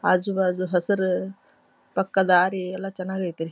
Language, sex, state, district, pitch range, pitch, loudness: Kannada, female, Karnataka, Dharwad, 180-190 Hz, 185 Hz, -24 LUFS